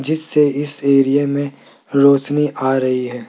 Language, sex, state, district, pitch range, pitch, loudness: Hindi, male, Rajasthan, Jaipur, 135-145 Hz, 140 Hz, -15 LUFS